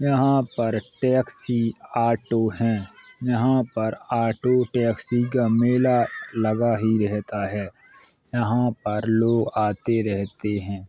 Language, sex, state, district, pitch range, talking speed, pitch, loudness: Hindi, male, Uttar Pradesh, Hamirpur, 105-120 Hz, 120 wpm, 115 Hz, -23 LUFS